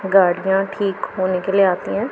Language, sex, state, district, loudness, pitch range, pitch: Hindi, female, Punjab, Pathankot, -19 LUFS, 185-195 Hz, 195 Hz